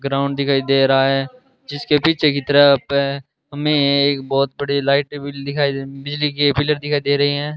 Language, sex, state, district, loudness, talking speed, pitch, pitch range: Hindi, male, Rajasthan, Bikaner, -17 LUFS, 190 wpm, 140 Hz, 140-145 Hz